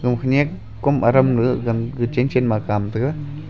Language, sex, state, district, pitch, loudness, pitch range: Wancho, male, Arunachal Pradesh, Longding, 125 Hz, -19 LUFS, 115-135 Hz